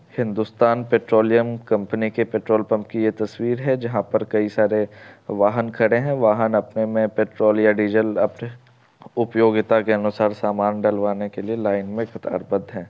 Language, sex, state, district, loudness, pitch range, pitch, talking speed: Hindi, male, Bihar, Darbhanga, -21 LUFS, 105-115 Hz, 110 Hz, 165 wpm